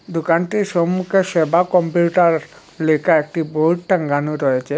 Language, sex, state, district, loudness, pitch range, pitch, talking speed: Bengali, male, Assam, Hailakandi, -17 LUFS, 155-180 Hz, 165 Hz, 115 wpm